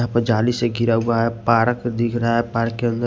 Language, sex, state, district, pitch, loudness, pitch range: Hindi, male, Maharashtra, Washim, 115 Hz, -19 LUFS, 115-120 Hz